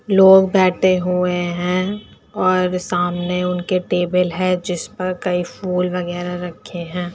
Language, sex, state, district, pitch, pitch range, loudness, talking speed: Hindi, female, Uttar Pradesh, Etah, 180 Hz, 180-185 Hz, -18 LUFS, 135 wpm